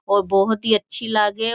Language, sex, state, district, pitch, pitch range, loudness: Marwari, female, Rajasthan, Churu, 215 Hz, 200-225 Hz, -19 LUFS